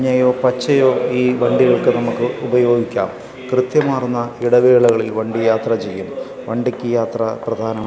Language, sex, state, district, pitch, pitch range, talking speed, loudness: Malayalam, male, Kerala, Kasaragod, 120 Hz, 115-125 Hz, 105 wpm, -16 LUFS